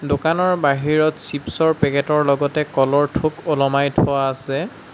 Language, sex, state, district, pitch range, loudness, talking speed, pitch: Assamese, male, Assam, Sonitpur, 140-155 Hz, -19 LUFS, 145 wpm, 145 Hz